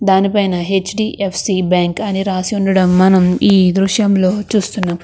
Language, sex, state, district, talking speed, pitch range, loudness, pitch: Telugu, female, Andhra Pradesh, Krishna, 130 wpm, 185-200 Hz, -14 LUFS, 195 Hz